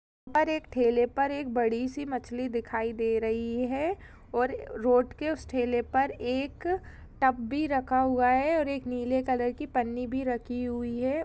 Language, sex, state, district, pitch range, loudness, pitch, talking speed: Hindi, female, Chhattisgarh, Kabirdham, 240-275 Hz, -29 LUFS, 255 Hz, 175 wpm